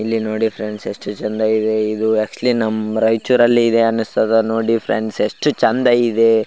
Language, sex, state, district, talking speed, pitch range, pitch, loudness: Kannada, male, Karnataka, Raichur, 150 wpm, 110-115 Hz, 110 Hz, -17 LUFS